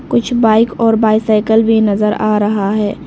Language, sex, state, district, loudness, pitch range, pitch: Hindi, female, Arunachal Pradesh, Lower Dibang Valley, -13 LUFS, 210-225 Hz, 220 Hz